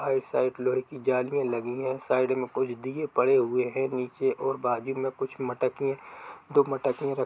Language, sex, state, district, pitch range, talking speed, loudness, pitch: Hindi, male, Jharkhand, Jamtara, 130-135 Hz, 165 wpm, -28 LUFS, 130 Hz